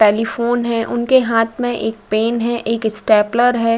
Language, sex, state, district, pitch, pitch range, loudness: Hindi, female, Uttar Pradesh, Budaun, 230 Hz, 220-240 Hz, -16 LUFS